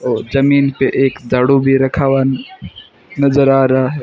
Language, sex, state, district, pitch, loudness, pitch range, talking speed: Hindi, male, Rajasthan, Bikaner, 135 Hz, -13 LUFS, 135-140 Hz, 180 wpm